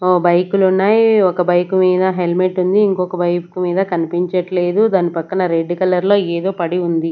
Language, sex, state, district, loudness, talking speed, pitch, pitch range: Telugu, female, Andhra Pradesh, Sri Satya Sai, -15 LUFS, 150 wpm, 180 Hz, 175-190 Hz